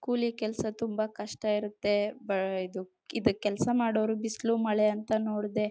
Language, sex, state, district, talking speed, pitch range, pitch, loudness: Kannada, female, Karnataka, Chamarajanagar, 125 wpm, 210-225 Hz, 215 Hz, -30 LUFS